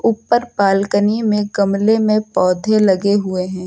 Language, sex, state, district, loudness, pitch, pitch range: Hindi, female, Uttar Pradesh, Lucknow, -16 LUFS, 205 Hz, 195-215 Hz